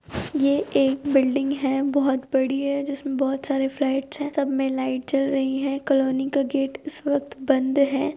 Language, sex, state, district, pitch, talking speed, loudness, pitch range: Hindi, male, Uttar Pradesh, Jyotiba Phule Nagar, 275 Hz, 175 wpm, -23 LUFS, 270-280 Hz